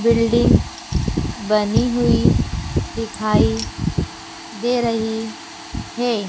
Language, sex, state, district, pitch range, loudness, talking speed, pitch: Hindi, female, Madhya Pradesh, Dhar, 210-235 Hz, -20 LUFS, 65 wpm, 225 Hz